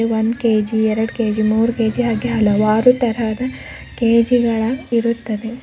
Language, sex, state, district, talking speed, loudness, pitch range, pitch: Kannada, female, Karnataka, Bidar, 105 wpm, -17 LUFS, 220-235 Hz, 230 Hz